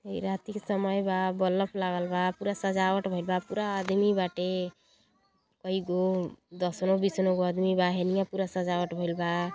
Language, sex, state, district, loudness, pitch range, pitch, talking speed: Bhojpuri, female, Uttar Pradesh, Gorakhpur, -29 LUFS, 180-195 Hz, 185 Hz, 170 wpm